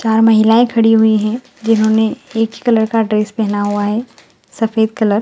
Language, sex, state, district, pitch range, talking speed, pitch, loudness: Hindi, female, Bihar, Gaya, 215-225 Hz, 185 wpm, 220 Hz, -14 LUFS